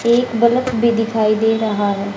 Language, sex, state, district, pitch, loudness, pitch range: Hindi, female, Haryana, Rohtak, 225 Hz, -16 LUFS, 215-235 Hz